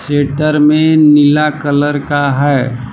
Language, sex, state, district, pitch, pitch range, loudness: Hindi, male, Jharkhand, Palamu, 145 Hz, 145-150 Hz, -11 LUFS